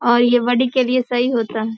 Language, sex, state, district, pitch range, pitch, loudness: Hindi, female, Bihar, Samastipur, 240-250 Hz, 245 Hz, -17 LUFS